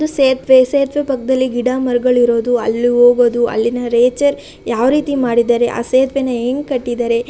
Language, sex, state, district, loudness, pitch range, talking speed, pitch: Kannada, female, Karnataka, Shimoga, -14 LUFS, 240-265 Hz, 150 wpm, 245 Hz